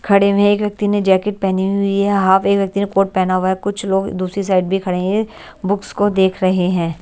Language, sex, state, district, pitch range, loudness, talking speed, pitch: Hindi, male, Delhi, New Delhi, 185-200 Hz, -16 LUFS, 255 wpm, 195 Hz